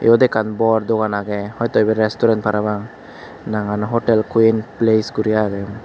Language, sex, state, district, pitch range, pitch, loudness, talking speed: Chakma, male, Tripura, West Tripura, 105-115 Hz, 110 Hz, -18 LUFS, 155 wpm